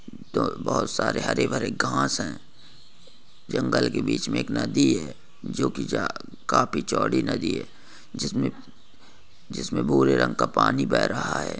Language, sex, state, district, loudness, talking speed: Hindi, male, Jharkhand, Jamtara, -25 LUFS, 150 wpm